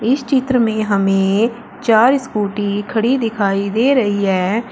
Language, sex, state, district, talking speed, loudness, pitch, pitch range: Hindi, female, Uttar Pradesh, Shamli, 140 wpm, -16 LUFS, 220 Hz, 200-245 Hz